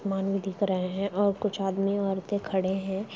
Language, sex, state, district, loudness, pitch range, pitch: Hindi, female, Chhattisgarh, Rajnandgaon, -28 LUFS, 190-200 Hz, 195 Hz